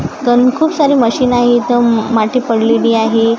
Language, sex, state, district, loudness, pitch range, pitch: Marathi, female, Maharashtra, Gondia, -12 LUFS, 225-250 Hz, 240 Hz